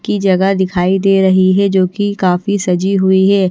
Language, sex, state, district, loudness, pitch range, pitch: Hindi, female, Haryana, Rohtak, -13 LUFS, 185-195 Hz, 190 Hz